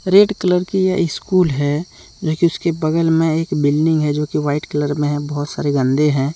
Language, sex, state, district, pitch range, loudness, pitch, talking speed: Hindi, male, Jharkhand, Deoghar, 145-175 Hz, -17 LUFS, 155 Hz, 215 wpm